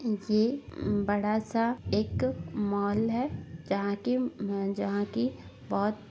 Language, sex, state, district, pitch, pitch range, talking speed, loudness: Hindi, female, Bihar, Gopalganj, 205 Hz, 200-220 Hz, 120 wpm, -30 LUFS